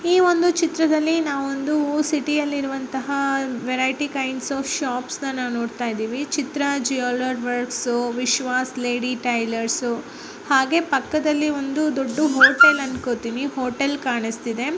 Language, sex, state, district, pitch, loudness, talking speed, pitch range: Kannada, female, Karnataka, Mysore, 270 Hz, -21 LUFS, 110 wpm, 250-295 Hz